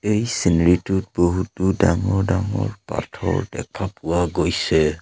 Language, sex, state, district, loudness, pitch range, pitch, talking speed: Assamese, male, Assam, Sonitpur, -21 LUFS, 85-100 Hz, 95 Hz, 110 wpm